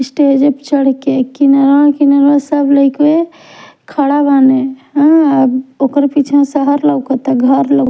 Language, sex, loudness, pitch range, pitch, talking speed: Bhojpuri, female, -11 LUFS, 270-290 Hz, 280 Hz, 130 wpm